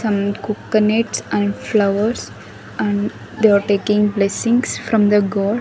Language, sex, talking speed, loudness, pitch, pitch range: English, female, 130 wpm, -18 LUFS, 205 Hz, 195-215 Hz